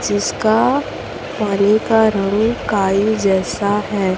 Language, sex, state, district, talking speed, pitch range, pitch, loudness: Hindi, female, Chhattisgarh, Raipur, 100 wpm, 200-220 Hz, 205 Hz, -16 LUFS